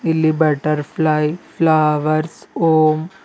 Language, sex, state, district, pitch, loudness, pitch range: Kannada, male, Karnataka, Bidar, 155 Hz, -17 LUFS, 155-160 Hz